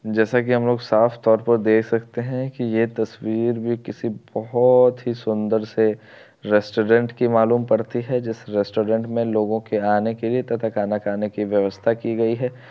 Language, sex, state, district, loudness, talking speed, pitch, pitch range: Hindi, male, Bihar, Darbhanga, -21 LUFS, 190 wpm, 115 Hz, 110-120 Hz